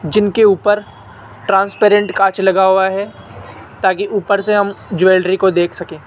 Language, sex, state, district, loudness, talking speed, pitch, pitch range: Hindi, male, Rajasthan, Jaipur, -14 LUFS, 150 wpm, 190 Hz, 175-200 Hz